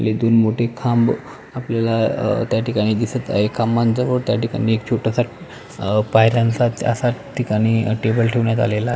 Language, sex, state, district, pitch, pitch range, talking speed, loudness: Marathi, male, Maharashtra, Pune, 115 Hz, 110-120 Hz, 105 wpm, -19 LUFS